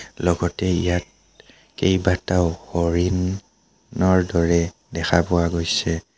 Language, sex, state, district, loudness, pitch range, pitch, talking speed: Assamese, male, Assam, Kamrup Metropolitan, -21 LUFS, 85-90 Hz, 85 Hz, 80 wpm